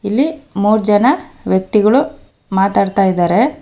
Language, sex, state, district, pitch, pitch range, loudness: Kannada, female, Karnataka, Bangalore, 210 Hz, 195-270 Hz, -14 LUFS